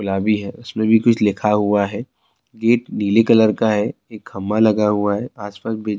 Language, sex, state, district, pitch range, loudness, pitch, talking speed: Urdu, male, Bihar, Saharsa, 105-115 Hz, -18 LUFS, 105 Hz, 210 wpm